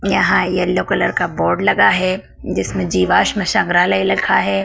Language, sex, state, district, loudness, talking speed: Hindi, female, Madhya Pradesh, Dhar, -16 LUFS, 155 wpm